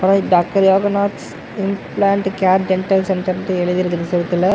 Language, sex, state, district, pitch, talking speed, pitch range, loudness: Tamil, male, Tamil Nadu, Namakkal, 190 Hz, 105 wpm, 180-195 Hz, -17 LUFS